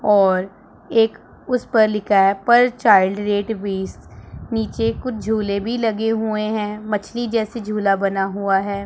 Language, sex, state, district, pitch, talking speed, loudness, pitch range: Hindi, female, Punjab, Pathankot, 215 Hz, 155 wpm, -19 LUFS, 200-225 Hz